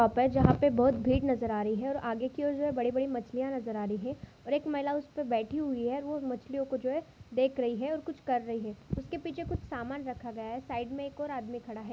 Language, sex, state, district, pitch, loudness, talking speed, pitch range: Hindi, female, Jharkhand, Sahebganj, 260 Hz, -32 LUFS, 265 wpm, 240-285 Hz